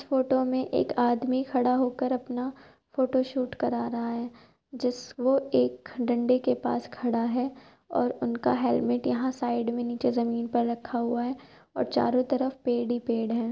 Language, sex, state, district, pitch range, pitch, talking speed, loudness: Hindi, male, Uttar Pradesh, Jyotiba Phule Nagar, 235-255 Hz, 245 Hz, 170 wpm, -28 LUFS